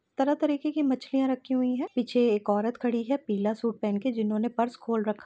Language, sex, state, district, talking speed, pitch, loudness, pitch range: Hindi, female, Uttar Pradesh, Etah, 205 wpm, 245 Hz, -28 LUFS, 220-265 Hz